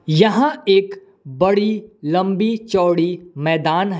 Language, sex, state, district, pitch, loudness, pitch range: Hindi, male, Jharkhand, Palamu, 195 Hz, -17 LUFS, 170-210 Hz